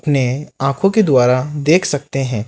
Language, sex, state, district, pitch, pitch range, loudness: Hindi, male, Rajasthan, Jaipur, 135 Hz, 130-150 Hz, -15 LUFS